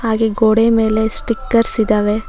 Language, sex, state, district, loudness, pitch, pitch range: Kannada, female, Karnataka, Bangalore, -15 LUFS, 220 Hz, 220-230 Hz